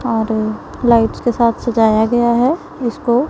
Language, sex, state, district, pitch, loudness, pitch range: Hindi, male, Punjab, Pathankot, 235 Hz, -15 LUFS, 225-240 Hz